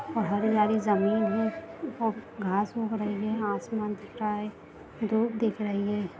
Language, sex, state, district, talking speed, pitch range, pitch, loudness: Hindi, female, Bihar, Jahanabad, 175 wpm, 210-225 Hz, 215 Hz, -29 LUFS